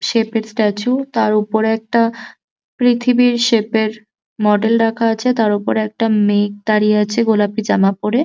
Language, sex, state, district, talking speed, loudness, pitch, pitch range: Bengali, male, West Bengal, Jhargram, 155 wpm, -16 LUFS, 220 Hz, 210-230 Hz